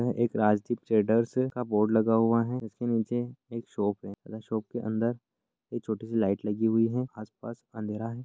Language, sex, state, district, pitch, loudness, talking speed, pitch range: Hindi, male, Chhattisgarh, Raigarh, 115 Hz, -29 LUFS, 205 wpm, 110-120 Hz